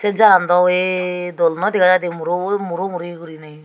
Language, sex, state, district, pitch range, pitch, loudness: Chakma, female, Tripura, Unakoti, 175-185 Hz, 180 Hz, -16 LUFS